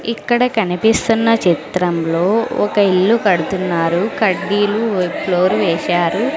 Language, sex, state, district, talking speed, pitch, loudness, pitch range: Telugu, female, Andhra Pradesh, Sri Satya Sai, 85 wpm, 195 Hz, -16 LUFS, 180-225 Hz